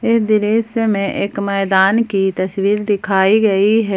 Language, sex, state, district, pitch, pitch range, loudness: Hindi, female, Jharkhand, Palamu, 205 Hz, 195-215 Hz, -15 LUFS